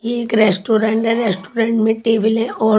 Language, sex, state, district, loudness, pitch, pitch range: Hindi, female, Chhattisgarh, Raipur, -16 LUFS, 225 Hz, 220-230 Hz